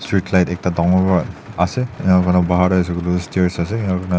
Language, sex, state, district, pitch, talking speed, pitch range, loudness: Nagamese, male, Nagaland, Dimapur, 90 Hz, 185 wpm, 90-95 Hz, -17 LUFS